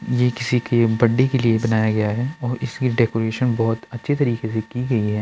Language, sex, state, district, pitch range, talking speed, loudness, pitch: Hindi, male, Uttar Pradesh, Budaun, 115-125 Hz, 220 wpm, -20 LUFS, 120 Hz